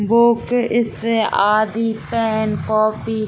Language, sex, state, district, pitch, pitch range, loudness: Hindi, female, Bihar, Saran, 220 Hz, 215-230 Hz, -18 LUFS